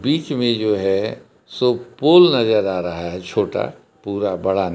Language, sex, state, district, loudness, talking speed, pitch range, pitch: Hindi, male, Jharkhand, Palamu, -18 LUFS, 165 wpm, 95-125 Hz, 105 Hz